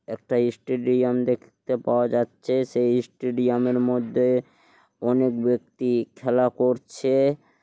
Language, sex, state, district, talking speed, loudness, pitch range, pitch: Bengali, male, West Bengal, Malda, 100 wpm, -23 LUFS, 120-125 Hz, 125 Hz